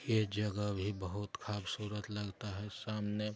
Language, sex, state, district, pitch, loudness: Hindi, male, Bihar, Gopalganj, 105 Hz, -39 LUFS